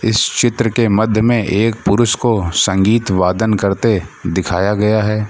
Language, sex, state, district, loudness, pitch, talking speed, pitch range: Hindi, male, Bihar, Gaya, -15 LUFS, 105 Hz, 160 wpm, 95-115 Hz